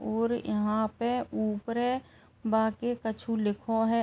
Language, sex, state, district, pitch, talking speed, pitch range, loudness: Hindi, female, Uttar Pradesh, Gorakhpur, 225 Hz, 120 wpm, 220-235 Hz, -30 LUFS